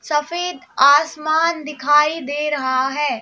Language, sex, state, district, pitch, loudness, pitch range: Hindi, female, Madhya Pradesh, Bhopal, 295 Hz, -18 LUFS, 285-315 Hz